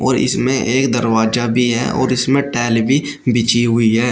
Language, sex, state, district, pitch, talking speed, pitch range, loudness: Hindi, male, Uttar Pradesh, Shamli, 120 Hz, 190 wpm, 115-130 Hz, -15 LUFS